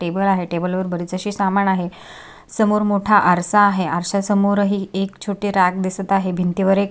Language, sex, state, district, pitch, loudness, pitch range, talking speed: Marathi, female, Maharashtra, Sindhudurg, 195 Hz, -18 LUFS, 180-200 Hz, 200 wpm